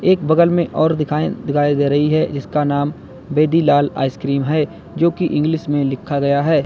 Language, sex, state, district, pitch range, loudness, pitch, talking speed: Hindi, male, Uttar Pradesh, Lalitpur, 140-160 Hz, -17 LUFS, 150 Hz, 190 wpm